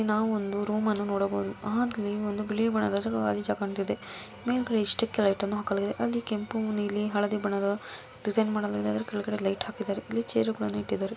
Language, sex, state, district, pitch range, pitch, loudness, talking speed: Kannada, female, Karnataka, Mysore, 200-215 Hz, 205 Hz, -29 LUFS, 100 wpm